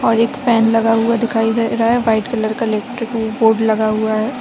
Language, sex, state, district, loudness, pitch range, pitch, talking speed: Hindi, female, Bihar, Saran, -16 LUFS, 220-230 Hz, 225 Hz, 230 wpm